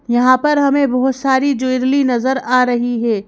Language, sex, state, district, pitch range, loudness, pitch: Hindi, female, Madhya Pradesh, Bhopal, 245-270 Hz, -15 LUFS, 255 Hz